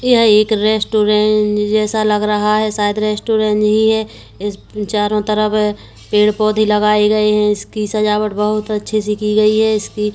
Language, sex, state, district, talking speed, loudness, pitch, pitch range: Hindi, male, Chhattisgarh, Kabirdham, 170 wpm, -15 LUFS, 210 Hz, 210-215 Hz